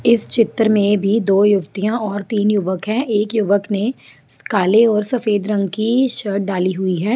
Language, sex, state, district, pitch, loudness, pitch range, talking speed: Hindi, female, Jharkhand, Sahebganj, 210 Hz, -17 LUFS, 200-225 Hz, 185 wpm